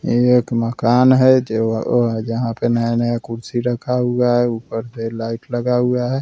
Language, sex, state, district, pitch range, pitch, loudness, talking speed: Hindi, male, Bihar, Vaishali, 115-125 Hz, 120 Hz, -18 LUFS, 205 wpm